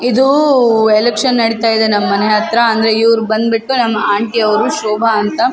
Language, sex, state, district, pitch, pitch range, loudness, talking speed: Kannada, female, Karnataka, Raichur, 225 Hz, 215-240 Hz, -12 LUFS, 150 wpm